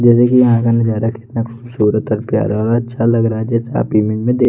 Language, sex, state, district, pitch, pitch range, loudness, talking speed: Hindi, male, Odisha, Nuapada, 115 Hz, 110-120 Hz, -15 LUFS, 255 wpm